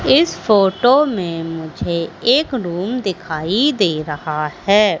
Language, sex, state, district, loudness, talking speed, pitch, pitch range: Hindi, female, Madhya Pradesh, Katni, -17 LUFS, 120 wpm, 190 Hz, 165-240 Hz